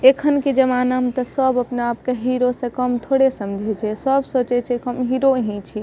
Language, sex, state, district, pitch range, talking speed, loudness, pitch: Maithili, female, Bihar, Madhepura, 240-265 Hz, 215 wpm, -19 LUFS, 250 Hz